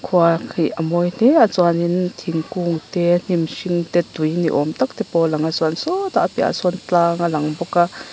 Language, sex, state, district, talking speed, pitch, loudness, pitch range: Mizo, female, Mizoram, Aizawl, 230 wpm, 175 Hz, -19 LUFS, 165-180 Hz